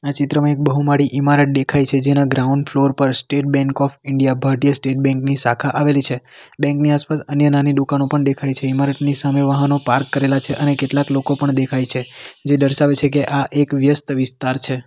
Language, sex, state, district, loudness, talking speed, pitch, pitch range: Gujarati, male, Gujarat, Valsad, -17 LUFS, 210 wpm, 140 Hz, 135-145 Hz